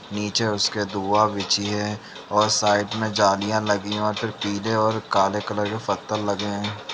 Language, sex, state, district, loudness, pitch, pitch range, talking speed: Hindi, male, Uttar Pradesh, Jalaun, -23 LUFS, 105 Hz, 105-110 Hz, 190 wpm